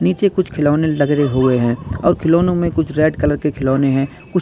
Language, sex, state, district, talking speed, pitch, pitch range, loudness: Hindi, male, Uttar Pradesh, Lalitpur, 245 wpm, 150 Hz, 135-170 Hz, -16 LUFS